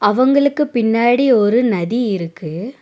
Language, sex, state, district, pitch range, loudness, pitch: Tamil, female, Tamil Nadu, Nilgiris, 205-255 Hz, -15 LUFS, 235 Hz